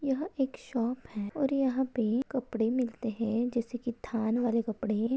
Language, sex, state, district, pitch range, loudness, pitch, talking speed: Hindi, female, Chhattisgarh, Rajnandgaon, 225-260 Hz, -31 LUFS, 240 Hz, 175 wpm